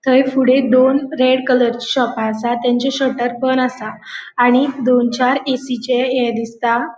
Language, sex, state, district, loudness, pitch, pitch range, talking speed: Konkani, female, Goa, North and South Goa, -16 LUFS, 255 Hz, 240-260 Hz, 145 wpm